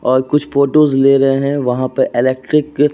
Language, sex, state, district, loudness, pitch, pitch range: Hindi, male, Uttar Pradesh, Jyotiba Phule Nagar, -14 LUFS, 135 Hz, 130-145 Hz